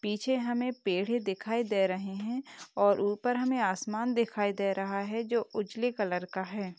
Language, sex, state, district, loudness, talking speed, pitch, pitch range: Hindi, female, Uttar Pradesh, Etah, -31 LUFS, 185 wpm, 210 Hz, 195-240 Hz